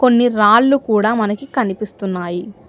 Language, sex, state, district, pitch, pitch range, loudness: Telugu, female, Telangana, Hyderabad, 215 Hz, 200-245 Hz, -16 LUFS